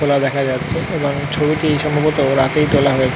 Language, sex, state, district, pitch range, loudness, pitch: Bengali, male, West Bengal, North 24 Parganas, 135-150 Hz, -16 LUFS, 145 Hz